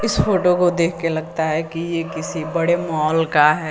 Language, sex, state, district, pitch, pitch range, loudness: Hindi, female, Uttar Pradesh, Lucknow, 165 Hz, 160-175 Hz, -19 LUFS